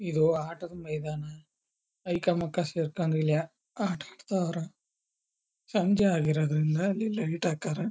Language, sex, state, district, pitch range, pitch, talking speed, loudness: Kannada, male, Karnataka, Chamarajanagar, 155-185 Hz, 170 Hz, 100 wpm, -29 LUFS